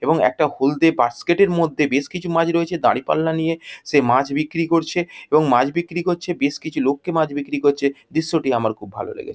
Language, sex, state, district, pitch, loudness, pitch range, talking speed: Bengali, female, West Bengal, Jhargram, 160 Hz, -20 LUFS, 140-170 Hz, 205 wpm